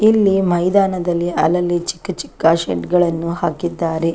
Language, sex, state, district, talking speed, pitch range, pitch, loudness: Kannada, female, Karnataka, Chamarajanagar, 115 wpm, 170-185 Hz, 175 Hz, -17 LUFS